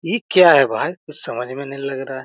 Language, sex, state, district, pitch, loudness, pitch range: Hindi, male, Bihar, Jamui, 140 Hz, -17 LUFS, 130-170 Hz